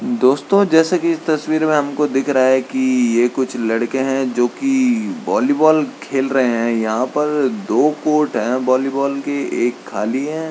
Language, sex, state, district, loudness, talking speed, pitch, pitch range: Hindi, male, Uttarakhand, Tehri Garhwal, -17 LUFS, 175 wpm, 140 Hz, 130-155 Hz